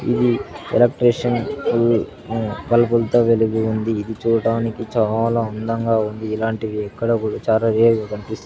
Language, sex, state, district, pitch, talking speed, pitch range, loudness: Telugu, male, Andhra Pradesh, Sri Satya Sai, 115 Hz, 140 wpm, 110-115 Hz, -19 LUFS